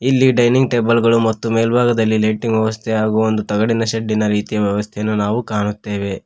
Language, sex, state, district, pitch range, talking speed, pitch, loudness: Kannada, male, Karnataka, Koppal, 105-115 Hz, 155 wpm, 110 Hz, -17 LUFS